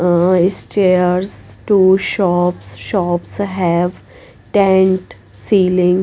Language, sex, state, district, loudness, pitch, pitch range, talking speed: English, female, Punjab, Pathankot, -15 LUFS, 185 Hz, 180-195 Hz, 90 wpm